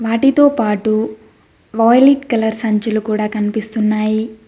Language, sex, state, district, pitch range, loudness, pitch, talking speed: Telugu, female, Telangana, Mahabubabad, 215-230 Hz, -15 LUFS, 220 Hz, 95 wpm